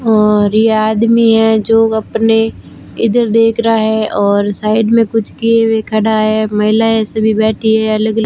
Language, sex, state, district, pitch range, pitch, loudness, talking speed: Hindi, female, Rajasthan, Barmer, 215-225 Hz, 220 Hz, -12 LUFS, 175 wpm